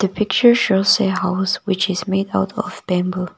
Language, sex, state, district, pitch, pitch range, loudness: English, female, Nagaland, Kohima, 190 Hz, 185-195 Hz, -18 LUFS